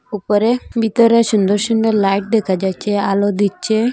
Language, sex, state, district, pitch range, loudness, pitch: Bengali, female, Assam, Hailakandi, 200-225 Hz, -16 LUFS, 210 Hz